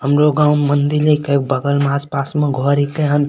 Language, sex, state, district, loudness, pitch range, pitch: Maithili, male, Bihar, Supaul, -16 LUFS, 140-150 Hz, 145 Hz